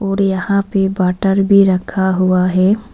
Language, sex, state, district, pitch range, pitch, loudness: Hindi, female, Arunachal Pradesh, Papum Pare, 185-200 Hz, 195 Hz, -14 LUFS